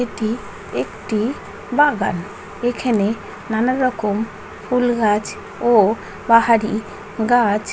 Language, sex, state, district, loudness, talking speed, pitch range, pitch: Bengali, female, West Bengal, North 24 Parganas, -19 LUFS, 80 wpm, 205-240 Hz, 215 Hz